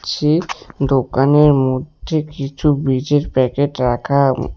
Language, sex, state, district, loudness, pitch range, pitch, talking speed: Bengali, male, West Bengal, Alipurduar, -16 LUFS, 130-150 Hz, 140 Hz, 105 wpm